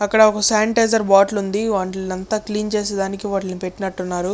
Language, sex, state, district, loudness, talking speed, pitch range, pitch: Telugu, male, Andhra Pradesh, Chittoor, -19 LUFS, 150 wpm, 190-215 Hz, 200 Hz